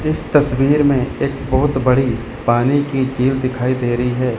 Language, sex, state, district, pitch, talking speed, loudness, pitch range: Hindi, male, Chandigarh, Chandigarh, 130 Hz, 175 wpm, -17 LUFS, 125-135 Hz